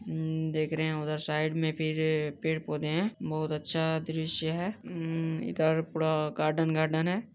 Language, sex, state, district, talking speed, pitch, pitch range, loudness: Hindi, male, Bihar, Madhepura, 170 wpm, 160 Hz, 155-160 Hz, -31 LUFS